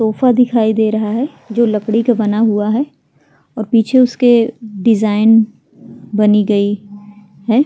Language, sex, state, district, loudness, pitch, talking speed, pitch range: Hindi, female, Bihar, Vaishali, -14 LUFS, 220 Hz, 150 wpm, 210-240 Hz